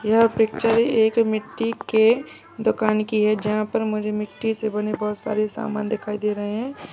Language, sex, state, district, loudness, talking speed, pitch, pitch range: Hindi, male, Uttar Pradesh, Lalitpur, -22 LUFS, 180 wpm, 215 Hz, 210-225 Hz